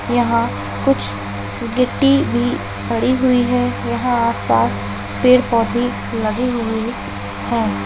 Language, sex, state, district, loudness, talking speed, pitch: Hindi, female, Karnataka, Dakshina Kannada, -18 LUFS, 105 wpm, 220 Hz